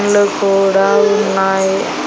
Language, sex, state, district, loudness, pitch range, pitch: Telugu, female, Andhra Pradesh, Annamaya, -13 LUFS, 195-205 Hz, 195 Hz